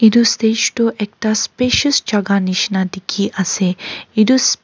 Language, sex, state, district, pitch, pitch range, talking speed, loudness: Nagamese, female, Nagaland, Kohima, 215 Hz, 195-230 Hz, 140 wpm, -16 LUFS